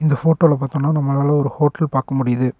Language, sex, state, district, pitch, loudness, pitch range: Tamil, male, Tamil Nadu, Nilgiris, 145 Hz, -18 LUFS, 135-155 Hz